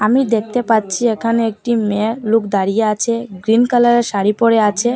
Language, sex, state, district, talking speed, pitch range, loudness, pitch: Bengali, female, Assam, Hailakandi, 170 wpm, 210-235 Hz, -15 LUFS, 225 Hz